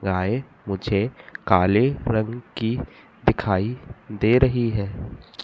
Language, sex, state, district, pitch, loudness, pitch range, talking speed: Hindi, male, Madhya Pradesh, Katni, 110 Hz, -23 LUFS, 100-120 Hz, 110 wpm